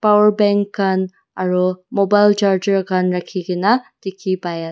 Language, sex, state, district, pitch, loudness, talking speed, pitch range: Nagamese, female, Nagaland, Dimapur, 195 Hz, -17 LUFS, 140 wpm, 185-205 Hz